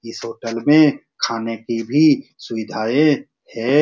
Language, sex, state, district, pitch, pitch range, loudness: Hindi, male, Bihar, Saran, 115 Hz, 115-150 Hz, -18 LUFS